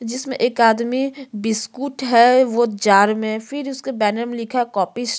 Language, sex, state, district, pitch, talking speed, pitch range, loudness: Hindi, female, Chhattisgarh, Sukma, 235 Hz, 185 wpm, 220-260 Hz, -18 LUFS